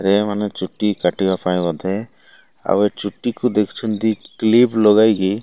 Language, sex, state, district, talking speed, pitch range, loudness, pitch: Odia, male, Odisha, Malkangiri, 130 wpm, 95-110 Hz, -18 LUFS, 105 Hz